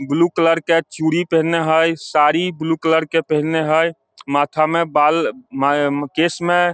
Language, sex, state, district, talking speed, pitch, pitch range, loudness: Maithili, male, Bihar, Samastipur, 170 wpm, 160 Hz, 150-165 Hz, -17 LUFS